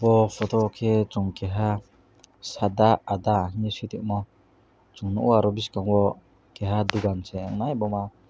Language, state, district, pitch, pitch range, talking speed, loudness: Kokborok, Tripura, West Tripura, 105 Hz, 100-110 Hz, 130 wpm, -25 LUFS